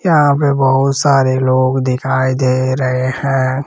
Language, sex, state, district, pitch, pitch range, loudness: Hindi, male, Rajasthan, Jaipur, 130 Hz, 130-135 Hz, -14 LUFS